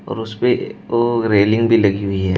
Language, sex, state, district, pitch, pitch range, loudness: Hindi, male, Uttar Pradesh, Shamli, 110 Hz, 100-115 Hz, -17 LUFS